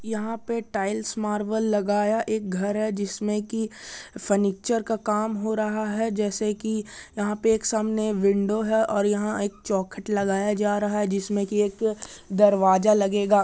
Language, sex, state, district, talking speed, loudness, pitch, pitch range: Maithili, male, Bihar, Supaul, 170 wpm, -24 LUFS, 210 Hz, 205-220 Hz